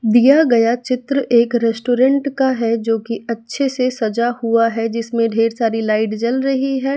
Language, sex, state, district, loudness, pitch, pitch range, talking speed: Hindi, female, Bihar, West Champaran, -17 LUFS, 235 Hz, 230-265 Hz, 180 wpm